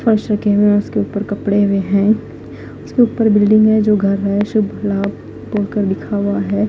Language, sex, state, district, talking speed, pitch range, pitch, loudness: Hindi, female, Punjab, Fazilka, 170 wpm, 200-215 Hz, 205 Hz, -15 LUFS